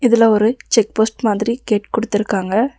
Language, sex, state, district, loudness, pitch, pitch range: Tamil, female, Tamil Nadu, Nilgiris, -17 LUFS, 225 Hz, 210-230 Hz